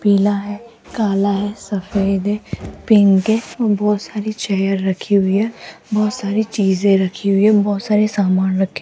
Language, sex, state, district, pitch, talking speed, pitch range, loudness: Hindi, female, Rajasthan, Jaipur, 205 Hz, 170 wpm, 195-215 Hz, -17 LUFS